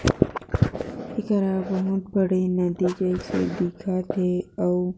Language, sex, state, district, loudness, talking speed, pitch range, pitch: Chhattisgarhi, female, Chhattisgarh, Jashpur, -25 LUFS, 95 wpm, 180-195 Hz, 185 Hz